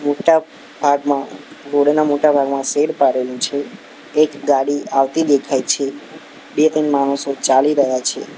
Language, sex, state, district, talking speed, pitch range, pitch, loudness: Gujarati, male, Gujarat, Gandhinagar, 135 wpm, 135-150 Hz, 140 Hz, -17 LUFS